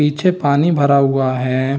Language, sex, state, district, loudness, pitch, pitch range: Hindi, male, Bihar, Saran, -15 LUFS, 140 Hz, 135-150 Hz